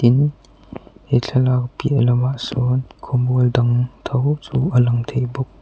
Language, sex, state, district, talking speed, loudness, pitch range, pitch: Mizo, male, Mizoram, Aizawl, 150 wpm, -19 LUFS, 125-135 Hz, 125 Hz